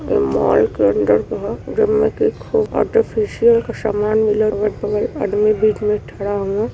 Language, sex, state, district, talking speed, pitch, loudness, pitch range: Awadhi, female, Uttar Pradesh, Varanasi, 150 wpm, 210 Hz, -17 LUFS, 200-235 Hz